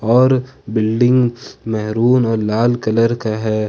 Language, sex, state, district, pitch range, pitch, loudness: Hindi, male, Jharkhand, Ranchi, 110-120 Hz, 115 Hz, -16 LUFS